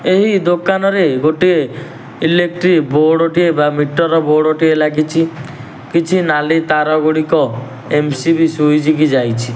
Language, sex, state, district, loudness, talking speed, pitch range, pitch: Odia, male, Odisha, Nuapada, -13 LUFS, 120 wpm, 150-170 Hz, 155 Hz